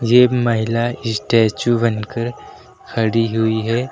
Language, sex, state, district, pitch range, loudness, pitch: Hindi, male, Uttar Pradesh, Lucknow, 110-120 Hz, -18 LUFS, 115 Hz